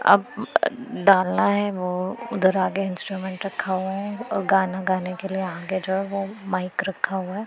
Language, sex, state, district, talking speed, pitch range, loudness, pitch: Hindi, female, Punjab, Pathankot, 170 wpm, 185-195 Hz, -24 LUFS, 190 Hz